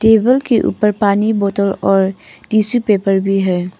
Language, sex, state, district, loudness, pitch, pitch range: Hindi, female, Arunachal Pradesh, Papum Pare, -15 LUFS, 200 Hz, 195-220 Hz